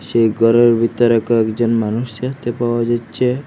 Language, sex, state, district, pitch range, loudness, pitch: Bengali, male, Assam, Hailakandi, 115-120 Hz, -16 LUFS, 120 Hz